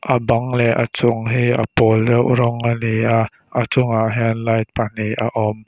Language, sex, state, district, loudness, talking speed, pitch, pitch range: Mizo, male, Mizoram, Aizawl, -18 LUFS, 210 wpm, 115 Hz, 110-120 Hz